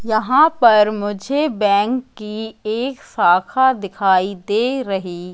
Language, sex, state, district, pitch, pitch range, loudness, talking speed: Hindi, female, Madhya Pradesh, Katni, 215 Hz, 200-255 Hz, -17 LUFS, 110 wpm